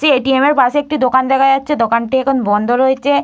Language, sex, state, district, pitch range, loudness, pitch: Bengali, female, West Bengal, Purulia, 255-280 Hz, -13 LUFS, 265 Hz